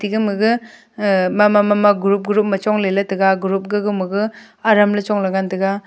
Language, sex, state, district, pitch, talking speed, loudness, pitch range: Wancho, female, Arunachal Pradesh, Longding, 205 Hz, 185 wpm, -17 LUFS, 195-210 Hz